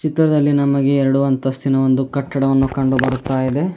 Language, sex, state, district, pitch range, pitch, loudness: Kannada, male, Karnataka, Bidar, 135-140 Hz, 135 Hz, -17 LUFS